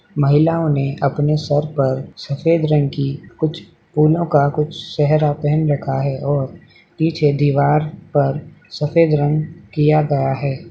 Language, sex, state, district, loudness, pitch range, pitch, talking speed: Hindi, male, Bihar, Madhepura, -18 LUFS, 140-160 Hz, 150 Hz, 140 wpm